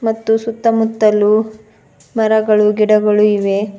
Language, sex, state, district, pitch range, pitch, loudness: Kannada, female, Karnataka, Bidar, 210-225 Hz, 215 Hz, -14 LUFS